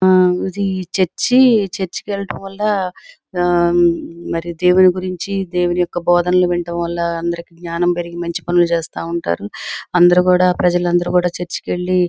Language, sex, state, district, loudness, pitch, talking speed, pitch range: Telugu, female, Andhra Pradesh, Guntur, -17 LUFS, 175 Hz, 145 wpm, 170-185 Hz